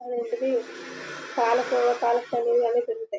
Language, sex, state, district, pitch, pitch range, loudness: Telugu, female, Andhra Pradesh, Guntur, 240 Hz, 235-250 Hz, -25 LUFS